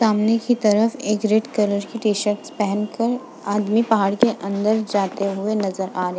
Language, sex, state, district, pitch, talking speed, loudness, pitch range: Hindi, female, Uttar Pradesh, Budaun, 210 Hz, 195 wpm, -21 LUFS, 200-225 Hz